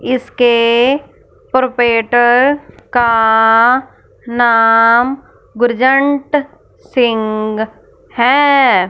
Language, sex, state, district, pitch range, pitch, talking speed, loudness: Hindi, female, Punjab, Fazilka, 230-270 Hz, 245 Hz, 45 wpm, -12 LUFS